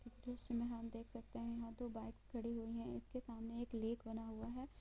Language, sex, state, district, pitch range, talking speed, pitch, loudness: Hindi, female, Bihar, East Champaran, 230-240 Hz, 250 wpm, 235 Hz, -48 LUFS